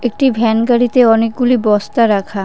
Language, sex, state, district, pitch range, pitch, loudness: Bengali, female, West Bengal, Cooch Behar, 215-245 Hz, 230 Hz, -13 LUFS